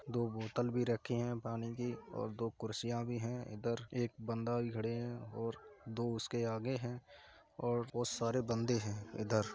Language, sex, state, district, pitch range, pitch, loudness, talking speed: Hindi, male, Uttar Pradesh, Hamirpur, 115-120 Hz, 120 Hz, -40 LUFS, 190 wpm